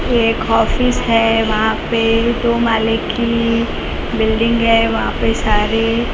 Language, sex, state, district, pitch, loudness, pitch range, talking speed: Hindi, female, Maharashtra, Mumbai Suburban, 230 Hz, -15 LUFS, 225-235 Hz, 135 wpm